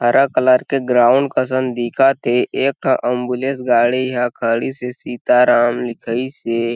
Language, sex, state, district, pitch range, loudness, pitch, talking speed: Chhattisgarhi, male, Chhattisgarh, Sarguja, 120-130 Hz, -16 LUFS, 125 Hz, 140 wpm